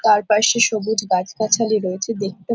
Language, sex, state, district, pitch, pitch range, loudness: Bengali, female, West Bengal, Jhargram, 215 Hz, 200-225 Hz, -18 LUFS